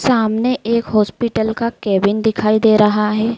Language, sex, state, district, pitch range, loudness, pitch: Hindi, female, Madhya Pradesh, Dhar, 210-235 Hz, -16 LUFS, 220 Hz